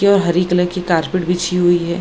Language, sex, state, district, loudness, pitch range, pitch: Hindi, female, Bihar, Gaya, -16 LUFS, 175-180 Hz, 180 Hz